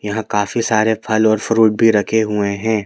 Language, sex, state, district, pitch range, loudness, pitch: Hindi, male, Madhya Pradesh, Bhopal, 105-110 Hz, -16 LUFS, 110 Hz